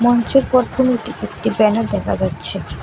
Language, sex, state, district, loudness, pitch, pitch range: Bengali, female, Tripura, West Tripura, -17 LUFS, 240 Hz, 225-260 Hz